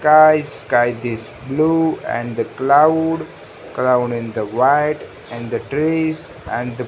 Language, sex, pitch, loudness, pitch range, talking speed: English, male, 135 Hz, -18 LUFS, 120-155 Hz, 150 wpm